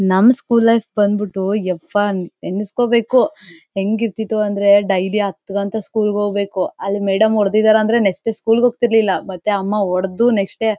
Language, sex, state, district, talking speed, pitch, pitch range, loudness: Kannada, female, Karnataka, Bellary, 165 wpm, 205 Hz, 195-220 Hz, -17 LUFS